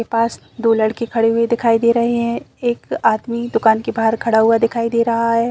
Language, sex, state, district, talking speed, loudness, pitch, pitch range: Hindi, female, Chhattisgarh, Balrampur, 240 wpm, -17 LUFS, 230 Hz, 225-235 Hz